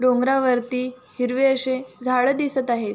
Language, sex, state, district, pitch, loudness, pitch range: Marathi, female, Maharashtra, Sindhudurg, 255 Hz, -21 LUFS, 250-265 Hz